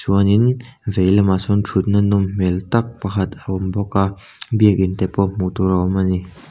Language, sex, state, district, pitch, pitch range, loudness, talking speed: Mizo, male, Mizoram, Aizawl, 95 Hz, 95-100 Hz, -18 LUFS, 205 wpm